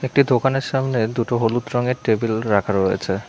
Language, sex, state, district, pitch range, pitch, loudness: Bengali, male, West Bengal, Cooch Behar, 110-130 Hz, 120 Hz, -20 LUFS